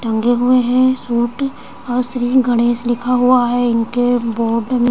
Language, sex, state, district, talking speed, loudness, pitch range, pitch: Hindi, female, Bihar, Saran, 170 wpm, -16 LUFS, 240-250 Hz, 245 Hz